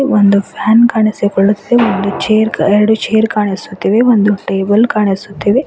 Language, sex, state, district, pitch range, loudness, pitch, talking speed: Kannada, female, Karnataka, Bidar, 200-220 Hz, -12 LUFS, 210 Hz, 105 wpm